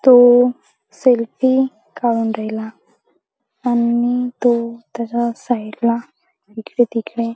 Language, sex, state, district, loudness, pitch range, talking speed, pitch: Marathi, female, Maharashtra, Chandrapur, -17 LUFS, 230-245 Hz, 90 wpm, 235 Hz